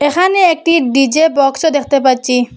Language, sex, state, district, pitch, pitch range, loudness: Bengali, female, Assam, Hailakandi, 285 Hz, 265-325 Hz, -12 LUFS